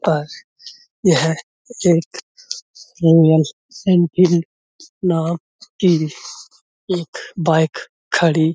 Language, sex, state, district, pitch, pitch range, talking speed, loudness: Hindi, male, Uttar Pradesh, Budaun, 175 Hz, 165-240 Hz, 70 wpm, -17 LUFS